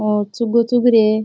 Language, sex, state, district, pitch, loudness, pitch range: Rajasthani, male, Rajasthan, Churu, 225 Hz, -16 LUFS, 215-235 Hz